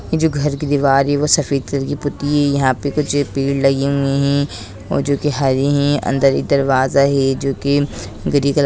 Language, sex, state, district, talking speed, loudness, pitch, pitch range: Hindi, female, Rajasthan, Nagaur, 220 wpm, -17 LUFS, 140 Hz, 135-145 Hz